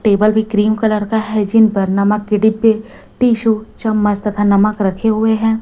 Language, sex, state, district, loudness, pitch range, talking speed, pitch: Hindi, female, Chhattisgarh, Raipur, -14 LUFS, 210-220 Hz, 190 wpm, 215 Hz